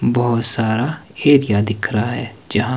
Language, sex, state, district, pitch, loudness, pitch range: Hindi, male, Himachal Pradesh, Shimla, 115 Hz, -18 LUFS, 110-125 Hz